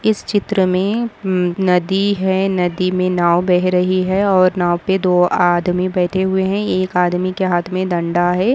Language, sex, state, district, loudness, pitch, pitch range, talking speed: Hindi, female, Maharashtra, Sindhudurg, -16 LUFS, 185 Hz, 180-190 Hz, 190 wpm